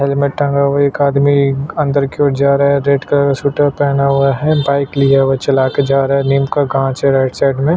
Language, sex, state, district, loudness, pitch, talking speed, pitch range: Hindi, male, Chhattisgarh, Sukma, -13 LUFS, 140 Hz, 280 wpm, 135-140 Hz